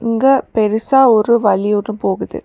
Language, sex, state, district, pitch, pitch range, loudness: Tamil, female, Tamil Nadu, Nilgiris, 220 Hz, 210-245 Hz, -14 LUFS